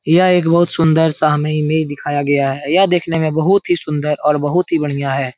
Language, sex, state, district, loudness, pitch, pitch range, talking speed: Hindi, male, Bihar, Jahanabad, -15 LUFS, 155 Hz, 145-170 Hz, 235 wpm